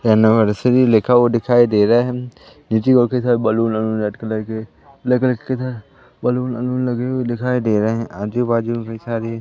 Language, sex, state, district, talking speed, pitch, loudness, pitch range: Hindi, male, Madhya Pradesh, Katni, 180 wpm, 120 Hz, -17 LUFS, 110-125 Hz